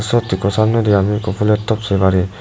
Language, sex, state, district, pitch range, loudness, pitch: Chakma, male, Tripura, West Tripura, 95-110 Hz, -16 LUFS, 105 Hz